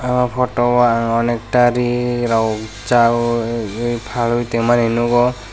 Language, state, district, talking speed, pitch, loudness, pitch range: Kokborok, Tripura, West Tripura, 130 wpm, 120 Hz, -17 LUFS, 115-120 Hz